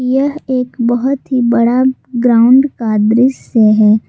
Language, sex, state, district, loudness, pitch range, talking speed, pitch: Hindi, female, Jharkhand, Garhwa, -12 LUFS, 230-260 Hz, 130 wpm, 245 Hz